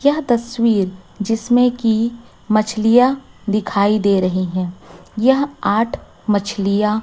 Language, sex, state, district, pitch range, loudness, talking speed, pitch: Hindi, female, Chhattisgarh, Raipur, 200-235 Hz, -17 LUFS, 100 wpm, 215 Hz